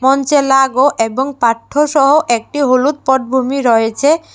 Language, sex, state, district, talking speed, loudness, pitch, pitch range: Bengali, female, Tripura, West Tripura, 125 wpm, -13 LUFS, 270 Hz, 245-285 Hz